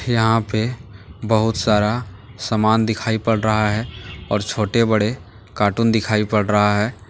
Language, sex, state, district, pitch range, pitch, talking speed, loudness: Hindi, male, Jharkhand, Deoghar, 105-115 Hz, 110 Hz, 145 wpm, -19 LUFS